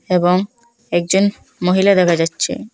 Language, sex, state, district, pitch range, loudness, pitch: Bengali, female, Assam, Hailakandi, 175-200 Hz, -16 LUFS, 185 Hz